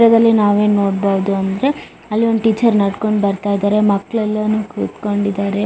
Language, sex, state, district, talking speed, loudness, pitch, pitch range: Kannada, female, Karnataka, Bellary, 135 wpm, -16 LUFS, 205 Hz, 200-220 Hz